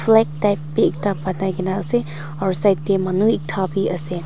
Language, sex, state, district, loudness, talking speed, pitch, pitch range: Nagamese, female, Nagaland, Dimapur, -20 LUFS, 140 wpm, 190 Hz, 180-200 Hz